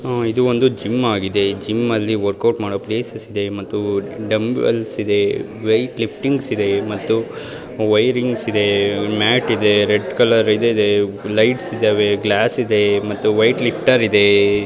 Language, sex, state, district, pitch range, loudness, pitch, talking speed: Kannada, male, Karnataka, Bijapur, 100-115 Hz, -17 LUFS, 105 Hz, 140 wpm